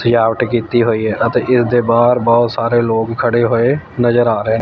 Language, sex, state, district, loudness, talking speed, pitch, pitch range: Punjabi, male, Punjab, Fazilka, -14 LUFS, 195 wpm, 120 Hz, 115-120 Hz